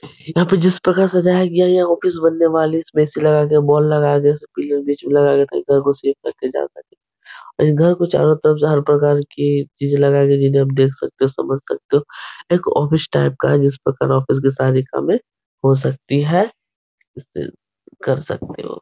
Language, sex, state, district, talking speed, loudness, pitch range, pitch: Hindi, male, Uttar Pradesh, Etah, 205 wpm, -16 LUFS, 140-165 Hz, 145 Hz